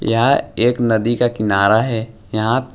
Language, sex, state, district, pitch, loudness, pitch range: Hindi, male, Maharashtra, Washim, 115 Hz, -17 LUFS, 110-120 Hz